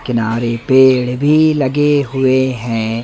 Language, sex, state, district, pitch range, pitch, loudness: Hindi, male, Madhya Pradesh, Umaria, 120-140 Hz, 130 Hz, -13 LUFS